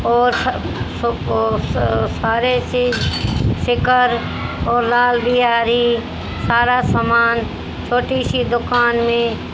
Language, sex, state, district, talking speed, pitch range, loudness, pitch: Hindi, female, Haryana, Rohtak, 80 wpm, 235-245 Hz, -17 LUFS, 240 Hz